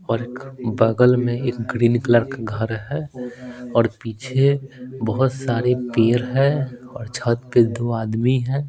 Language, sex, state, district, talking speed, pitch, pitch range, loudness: Hindi, male, Bihar, Patna, 150 wpm, 125 Hz, 115-130 Hz, -20 LUFS